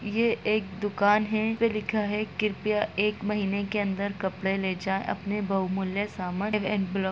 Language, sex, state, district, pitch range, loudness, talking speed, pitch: Hindi, male, Bihar, Muzaffarpur, 195-215 Hz, -28 LUFS, 160 wpm, 205 Hz